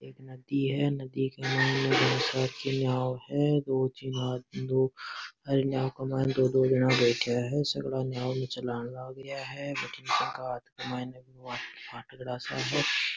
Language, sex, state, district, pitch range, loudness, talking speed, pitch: Rajasthani, male, Rajasthan, Nagaur, 125-135 Hz, -30 LUFS, 185 wpm, 130 Hz